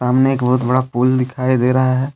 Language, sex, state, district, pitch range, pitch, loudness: Hindi, male, Jharkhand, Deoghar, 125-130 Hz, 130 Hz, -16 LUFS